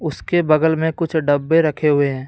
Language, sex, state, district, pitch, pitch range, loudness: Hindi, male, Jharkhand, Deoghar, 155 Hz, 145-160 Hz, -17 LUFS